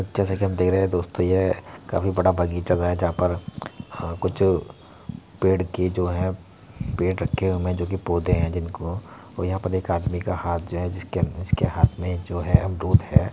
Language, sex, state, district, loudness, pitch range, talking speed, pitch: Hindi, male, Uttar Pradesh, Muzaffarnagar, -24 LUFS, 90-95 Hz, 205 wpm, 90 Hz